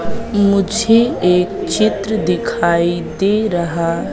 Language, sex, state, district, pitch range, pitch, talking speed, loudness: Hindi, female, Madhya Pradesh, Katni, 170-220 Hz, 200 Hz, 85 wpm, -15 LUFS